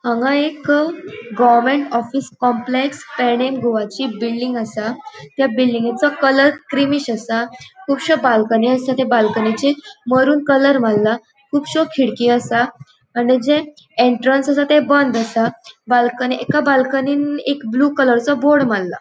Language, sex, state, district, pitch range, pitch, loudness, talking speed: Konkani, female, Goa, North and South Goa, 235-285 Hz, 260 Hz, -16 LUFS, 130 wpm